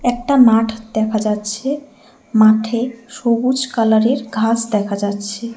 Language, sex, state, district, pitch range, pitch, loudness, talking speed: Bengali, female, West Bengal, Alipurduar, 215-245 Hz, 225 Hz, -16 LUFS, 110 wpm